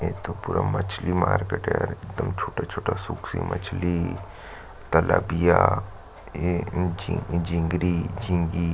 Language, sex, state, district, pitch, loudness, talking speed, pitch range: Hindi, male, Chhattisgarh, Jashpur, 90 Hz, -25 LUFS, 105 wpm, 85-90 Hz